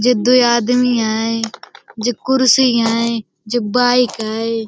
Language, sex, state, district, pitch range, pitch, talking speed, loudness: Hindi, female, Uttar Pradesh, Budaun, 225-245 Hz, 235 Hz, 130 wpm, -15 LUFS